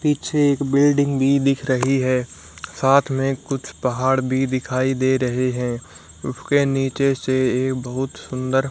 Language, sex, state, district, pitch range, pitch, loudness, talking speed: Hindi, male, Haryana, Rohtak, 130-135 Hz, 130 Hz, -20 LUFS, 150 wpm